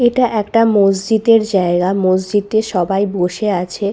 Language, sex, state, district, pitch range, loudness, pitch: Bengali, female, West Bengal, Purulia, 185-220 Hz, -15 LUFS, 200 Hz